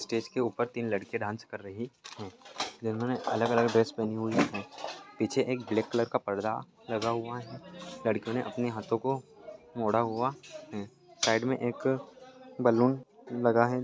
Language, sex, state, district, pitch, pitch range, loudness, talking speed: Hindi, male, Bihar, Lakhisarai, 120 Hz, 110-125 Hz, -31 LUFS, 170 wpm